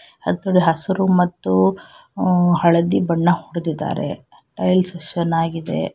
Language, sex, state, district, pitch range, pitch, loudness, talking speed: Kannada, female, Karnataka, Shimoga, 165-180 Hz, 170 Hz, -19 LUFS, 80 wpm